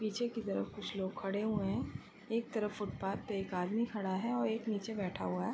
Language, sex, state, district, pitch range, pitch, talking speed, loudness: Hindi, female, Uttar Pradesh, Varanasi, 195-225 Hz, 205 Hz, 240 wpm, -38 LUFS